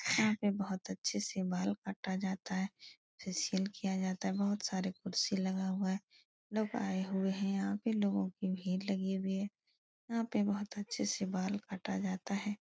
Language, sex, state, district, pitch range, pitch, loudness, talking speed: Hindi, female, Uttar Pradesh, Etah, 190-205 Hz, 195 Hz, -37 LUFS, 185 wpm